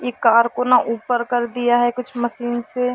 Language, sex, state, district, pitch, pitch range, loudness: Hindi, female, Jharkhand, Sahebganj, 240 Hz, 240-245 Hz, -19 LUFS